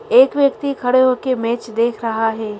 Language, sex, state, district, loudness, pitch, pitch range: Hindi, female, Madhya Pradesh, Bhopal, -17 LUFS, 245 Hz, 230-275 Hz